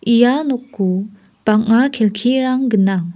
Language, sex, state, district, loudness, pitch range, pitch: Garo, female, Meghalaya, West Garo Hills, -16 LUFS, 200-255 Hz, 220 Hz